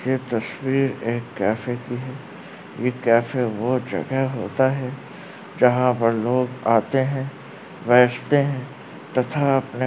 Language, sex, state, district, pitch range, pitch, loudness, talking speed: Hindi, male, Uttar Pradesh, Varanasi, 120-135 Hz, 125 Hz, -22 LUFS, 130 wpm